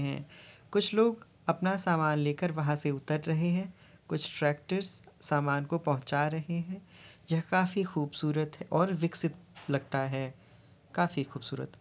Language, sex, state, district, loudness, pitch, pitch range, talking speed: Hindi, male, Uttar Pradesh, Varanasi, -31 LUFS, 155 Hz, 145-175 Hz, 135 wpm